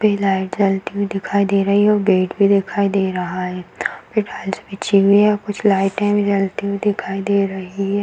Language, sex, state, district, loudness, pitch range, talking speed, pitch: Hindi, female, Bihar, Darbhanga, -18 LUFS, 195-205 Hz, 215 wpm, 200 Hz